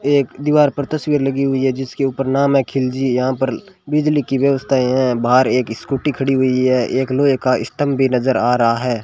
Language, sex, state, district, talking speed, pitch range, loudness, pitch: Hindi, male, Rajasthan, Bikaner, 220 wpm, 130-140 Hz, -17 LUFS, 135 Hz